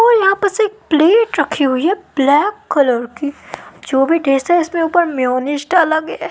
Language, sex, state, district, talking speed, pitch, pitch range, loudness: Hindi, female, Madhya Pradesh, Katni, 200 wpm, 315 Hz, 280-385 Hz, -15 LUFS